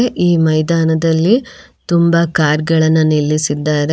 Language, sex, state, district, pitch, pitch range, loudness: Kannada, female, Karnataka, Bangalore, 160 Hz, 155-170 Hz, -13 LUFS